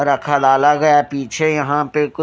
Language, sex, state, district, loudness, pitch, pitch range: Hindi, male, Haryana, Rohtak, -15 LUFS, 145 Hz, 140-150 Hz